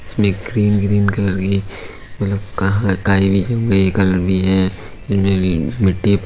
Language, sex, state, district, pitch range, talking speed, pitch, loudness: Hindi, male, Uttar Pradesh, Budaun, 95-100 Hz, 165 wpm, 100 Hz, -17 LUFS